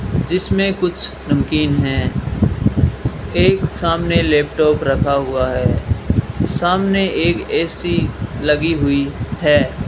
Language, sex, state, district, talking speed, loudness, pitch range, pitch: Hindi, male, Rajasthan, Bikaner, 95 wpm, -17 LUFS, 130-170 Hz, 150 Hz